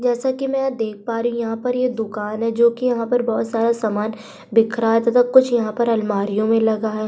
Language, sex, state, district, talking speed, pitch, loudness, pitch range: Hindi, female, Uttar Pradesh, Budaun, 235 wpm, 230 Hz, -19 LUFS, 220-245 Hz